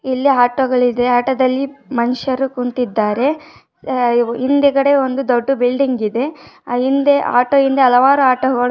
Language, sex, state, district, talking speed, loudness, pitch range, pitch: Kannada, female, Karnataka, Dharwad, 130 wpm, -15 LUFS, 245-275 Hz, 260 Hz